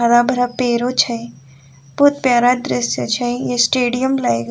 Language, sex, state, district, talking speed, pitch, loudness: Maithili, female, Bihar, Sitamarhi, 135 wpm, 240 Hz, -16 LUFS